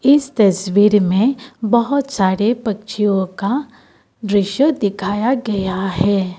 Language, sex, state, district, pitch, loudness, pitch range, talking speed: Hindi, female, Assam, Kamrup Metropolitan, 210 Hz, -17 LUFS, 195-245 Hz, 105 wpm